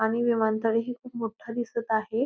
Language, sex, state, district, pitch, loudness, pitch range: Marathi, female, Maharashtra, Pune, 230 Hz, -28 LUFS, 220-240 Hz